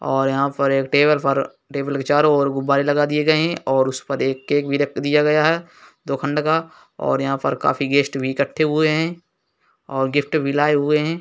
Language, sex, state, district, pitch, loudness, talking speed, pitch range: Hindi, male, Uttar Pradesh, Hamirpur, 145 Hz, -19 LUFS, 225 wpm, 135-150 Hz